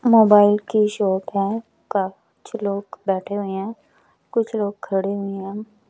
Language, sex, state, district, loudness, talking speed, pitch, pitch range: Hindi, female, Chandigarh, Chandigarh, -21 LUFS, 150 wpm, 205 Hz, 195-215 Hz